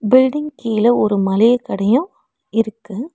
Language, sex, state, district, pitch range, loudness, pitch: Tamil, female, Tamil Nadu, Nilgiris, 215-255 Hz, -16 LUFS, 230 Hz